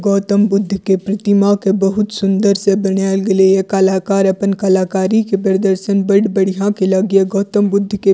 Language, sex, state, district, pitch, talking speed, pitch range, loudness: Maithili, female, Bihar, Purnia, 195 Hz, 175 wpm, 195-200 Hz, -14 LUFS